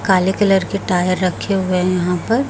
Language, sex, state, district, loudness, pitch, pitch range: Hindi, female, Chhattisgarh, Raipur, -17 LUFS, 185 Hz, 180-195 Hz